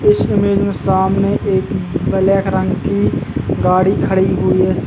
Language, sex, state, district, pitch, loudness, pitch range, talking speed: Hindi, male, Uttar Pradesh, Jalaun, 195 Hz, -15 LUFS, 190-200 Hz, 175 wpm